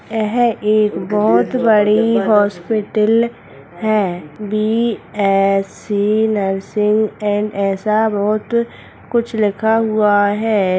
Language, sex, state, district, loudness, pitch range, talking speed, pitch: Hindi, male, Bihar, Purnia, -16 LUFS, 205-220 Hz, 85 wpm, 215 Hz